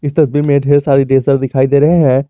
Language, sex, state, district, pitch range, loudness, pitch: Hindi, male, Jharkhand, Garhwa, 135-145 Hz, -11 LUFS, 140 Hz